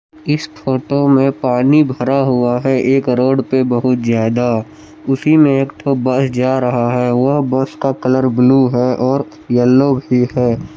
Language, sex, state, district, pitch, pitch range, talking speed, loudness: Hindi, male, Jharkhand, Palamu, 130 Hz, 125-135 Hz, 165 wpm, -14 LUFS